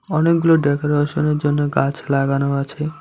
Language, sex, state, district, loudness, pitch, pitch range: Bengali, male, West Bengal, Alipurduar, -18 LUFS, 145 Hz, 140-155 Hz